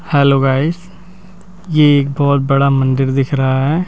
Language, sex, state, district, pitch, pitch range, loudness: Hindi, male, Madhya Pradesh, Bhopal, 140 Hz, 135-170 Hz, -13 LUFS